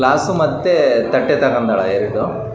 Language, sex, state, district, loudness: Kannada, male, Karnataka, Raichur, -16 LUFS